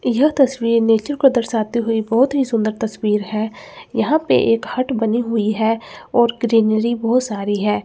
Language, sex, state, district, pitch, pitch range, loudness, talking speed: Hindi, female, Chandigarh, Chandigarh, 230 Hz, 220-245 Hz, -18 LUFS, 175 wpm